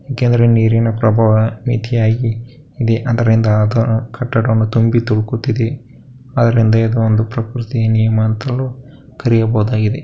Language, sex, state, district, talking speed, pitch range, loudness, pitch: Kannada, male, Karnataka, Bellary, 95 wpm, 110-120 Hz, -15 LUFS, 115 Hz